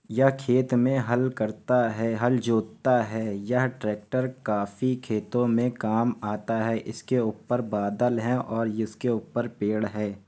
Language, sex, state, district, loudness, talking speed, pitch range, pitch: Hindi, male, Uttar Pradesh, Hamirpur, -26 LUFS, 150 wpm, 110-125 Hz, 115 Hz